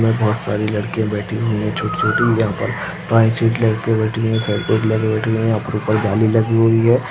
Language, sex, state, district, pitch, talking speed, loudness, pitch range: Hindi, male, Chhattisgarh, Balrampur, 110 Hz, 220 wpm, -17 LUFS, 105-115 Hz